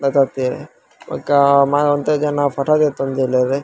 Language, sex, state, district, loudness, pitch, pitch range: Tulu, male, Karnataka, Dakshina Kannada, -16 LUFS, 140 Hz, 135-145 Hz